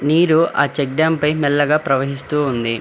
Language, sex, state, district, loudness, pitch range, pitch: Telugu, male, Telangana, Hyderabad, -17 LUFS, 140-155 Hz, 145 Hz